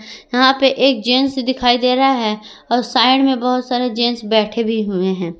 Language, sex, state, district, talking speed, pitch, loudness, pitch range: Hindi, female, Jharkhand, Garhwa, 200 wpm, 245 Hz, -15 LUFS, 220-260 Hz